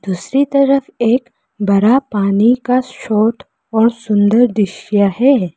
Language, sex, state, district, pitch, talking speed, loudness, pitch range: Hindi, female, Arunachal Pradesh, Lower Dibang Valley, 230 Hz, 120 wpm, -14 LUFS, 205-255 Hz